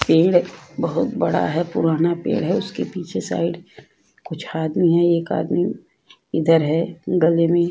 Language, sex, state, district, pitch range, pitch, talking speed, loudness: Hindi, female, Uttar Pradesh, Jyotiba Phule Nagar, 160-170 Hz, 170 Hz, 155 wpm, -20 LUFS